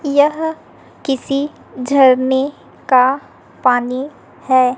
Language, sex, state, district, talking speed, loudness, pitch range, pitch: Hindi, female, Chhattisgarh, Raipur, 90 wpm, -16 LUFS, 255-285 Hz, 265 Hz